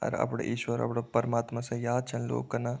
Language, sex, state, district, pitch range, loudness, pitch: Garhwali, male, Uttarakhand, Tehri Garhwal, 115-120 Hz, -31 LUFS, 120 Hz